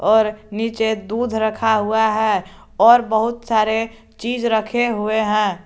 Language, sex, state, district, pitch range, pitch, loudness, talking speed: Hindi, male, Jharkhand, Garhwa, 215-225 Hz, 220 Hz, -18 LUFS, 140 wpm